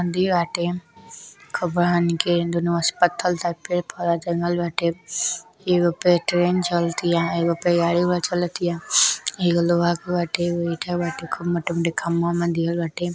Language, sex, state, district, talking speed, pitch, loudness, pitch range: Bhojpuri, male, Uttar Pradesh, Deoria, 145 wpm, 175 Hz, -22 LUFS, 170-175 Hz